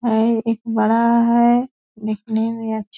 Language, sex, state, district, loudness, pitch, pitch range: Hindi, female, Bihar, Purnia, -18 LUFS, 225 Hz, 220-235 Hz